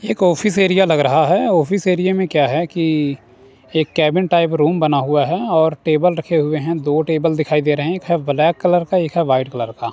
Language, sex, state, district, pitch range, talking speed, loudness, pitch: Hindi, male, Punjab, Kapurthala, 150-175 Hz, 240 wpm, -16 LUFS, 160 Hz